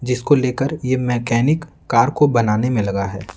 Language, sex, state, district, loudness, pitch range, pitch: Hindi, male, Bihar, Patna, -18 LUFS, 115-140 Hz, 125 Hz